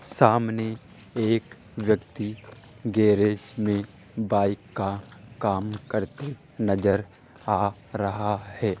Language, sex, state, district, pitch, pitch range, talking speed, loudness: Hindi, male, Rajasthan, Jaipur, 105 Hz, 100-110 Hz, 90 wpm, -26 LUFS